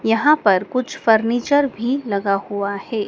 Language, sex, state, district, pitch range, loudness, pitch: Hindi, male, Madhya Pradesh, Dhar, 200-255 Hz, -18 LUFS, 225 Hz